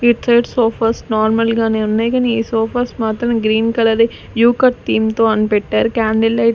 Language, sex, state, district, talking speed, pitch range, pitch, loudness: Telugu, female, Andhra Pradesh, Sri Satya Sai, 175 wpm, 220-235 Hz, 230 Hz, -15 LUFS